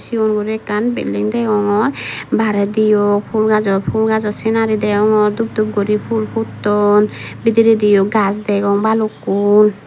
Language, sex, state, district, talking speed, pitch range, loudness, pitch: Chakma, female, Tripura, Dhalai, 130 wpm, 205-220 Hz, -15 LUFS, 210 Hz